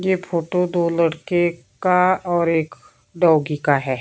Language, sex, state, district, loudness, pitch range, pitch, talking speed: Hindi, female, Himachal Pradesh, Shimla, -19 LUFS, 155-180 Hz, 170 Hz, 150 wpm